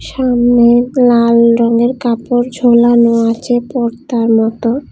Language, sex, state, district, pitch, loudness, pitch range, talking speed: Bengali, female, Tripura, West Tripura, 240 Hz, -11 LUFS, 235-245 Hz, 95 wpm